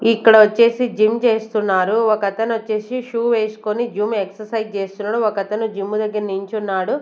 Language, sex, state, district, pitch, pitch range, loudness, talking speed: Telugu, female, Andhra Pradesh, Sri Satya Sai, 215 Hz, 210-230 Hz, -18 LUFS, 135 wpm